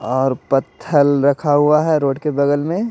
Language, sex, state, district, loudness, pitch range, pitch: Hindi, male, Bihar, Patna, -16 LUFS, 135-150 Hz, 145 Hz